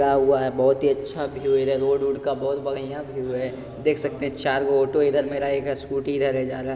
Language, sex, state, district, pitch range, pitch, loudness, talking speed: Hindi, male, Bihar, Jamui, 135-140 Hz, 140 Hz, -23 LUFS, 265 wpm